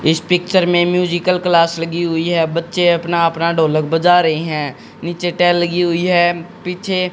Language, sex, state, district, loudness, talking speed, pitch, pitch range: Hindi, male, Haryana, Jhajjar, -15 LUFS, 175 wpm, 175 Hz, 165-180 Hz